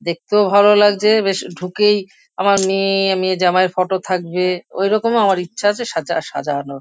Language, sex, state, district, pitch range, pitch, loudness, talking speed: Bengali, female, West Bengal, Kolkata, 180-205 Hz, 195 Hz, -16 LUFS, 150 wpm